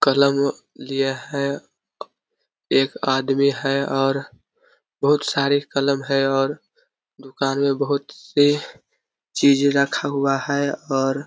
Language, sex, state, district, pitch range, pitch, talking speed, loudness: Hindi, male, Chhattisgarh, Korba, 135-140 Hz, 140 Hz, 110 wpm, -21 LUFS